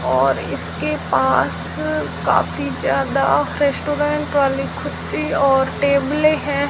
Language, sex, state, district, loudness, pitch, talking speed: Hindi, female, Rajasthan, Jaisalmer, -18 LUFS, 280 Hz, 100 wpm